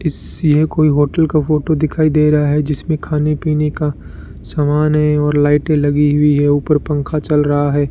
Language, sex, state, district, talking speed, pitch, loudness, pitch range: Hindi, male, Rajasthan, Bikaner, 195 wpm, 150 Hz, -15 LUFS, 145-155 Hz